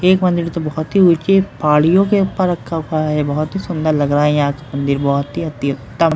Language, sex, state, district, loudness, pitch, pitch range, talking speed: Hindi, male, Bihar, Katihar, -16 LUFS, 155 Hz, 145-180 Hz, 265 wpm